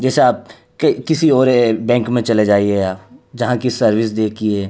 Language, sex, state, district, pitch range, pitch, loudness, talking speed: Hindi, male, Uttar Pradesh, Hamirpur, 105-125 Hz, 115 Hz, -15 LUFS, 180 wpm